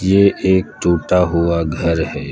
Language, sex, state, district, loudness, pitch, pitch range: Hindi, male, Uttar Pradesh, Lucknow, -16 LUFS, 85 Hz, 85-95 Hz